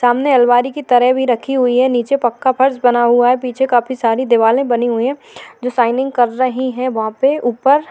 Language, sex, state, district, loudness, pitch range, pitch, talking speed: Hindi, female, Maharashtra, Chandrapur, -14 LUFS, 240-260 Hz, 250 Hz, 225 wpm